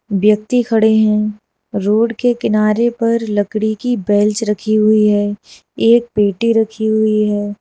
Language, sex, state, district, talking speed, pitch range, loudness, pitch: Hindi, female, Uttar Pradesh, Lalitpur, 140 wpm, 210-230 Hz, -15 LUFS, 215 Hz